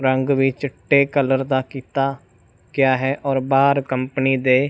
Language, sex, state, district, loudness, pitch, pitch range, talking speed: Punjabi, male, Punjab, Fazilka, -19 LUFS, 135 Hz, 130-140 Hz, 155 wpm